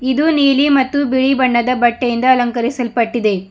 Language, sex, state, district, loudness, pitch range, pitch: Kannada, male, Karnataka, Bidar, -14 LUFS, 240-270 Hz, 255 Hz